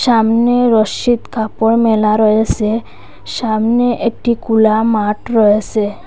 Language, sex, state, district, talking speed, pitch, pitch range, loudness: Bengali, female, Assam, Hailakandi, 110 wpm, 225 Hz, 215-235 Hz, -14 LUFS